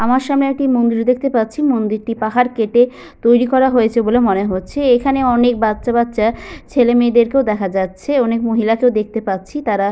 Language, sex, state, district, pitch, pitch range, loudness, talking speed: Bengali, female, West Bengal, Paschim Medinipur, 235 Hz, 220-255 Hz, -15 LUFS, 190 wpm